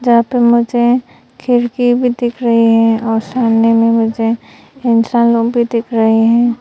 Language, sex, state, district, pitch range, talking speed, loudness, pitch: Hindi, female, Arunachal Pradesh, Papum Pare, 230-240 Hz, 165 wpm, -13 LUFS, 235 Hz